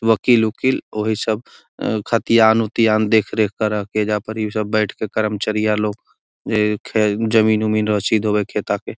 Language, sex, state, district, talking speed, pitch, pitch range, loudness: Magahi, male, Bihar, Gaya, 185 wpm, 110 Hz, 105-110 Hz, -18 LUFS